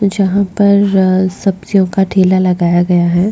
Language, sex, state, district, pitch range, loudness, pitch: Hindi, female, Goa, North and South Goa, 185-200 Hz, -12 LUFS, 190 Hz